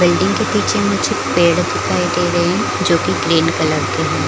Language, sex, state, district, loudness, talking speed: Hindi, female, Chhattisgarh, Balrampur, -15 LUFS, 180 wpm